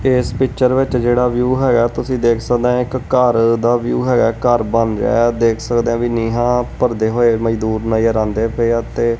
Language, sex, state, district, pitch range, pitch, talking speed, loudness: Punjabi, male, Punjab, Kapurthala, 115-125 Hz, 120 Hz, 210 wpm, -16 LUFS